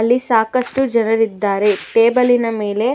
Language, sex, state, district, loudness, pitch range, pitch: Kannada, female, Karnataka, Bangalore, -16 LUFS, 215-245 Hz, 230 Hz